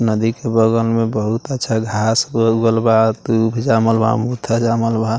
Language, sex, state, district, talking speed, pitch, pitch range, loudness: Bhojpuri, male, Bihar, Muzaffarpur, 160 wpm, 115 Hz, 110-115 Hz, -16 LUFS